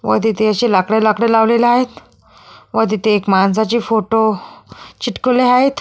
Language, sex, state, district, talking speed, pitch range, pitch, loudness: Marathi, female, Maharashtra, Solapur, 145 wpm, 215-235 Hz, 220 Hz, -14 LUFS